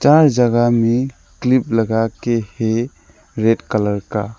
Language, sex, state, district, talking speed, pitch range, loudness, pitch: Hindi, male, Arunachal Pradesh, Lower Dibang Valley, 125 wpm, 110-120 Hz, -17 LUFS, 115 Hz